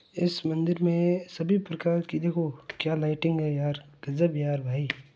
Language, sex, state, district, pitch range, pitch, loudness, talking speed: Hindi, male, Rajasthan, Churu, 145-170 Hz, 165 Hz, -28 LUFS, 165 wpm